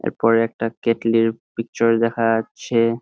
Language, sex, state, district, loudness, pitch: Bengali, male, West Bengal, Jhargram, -20 LUFS, 115 Hz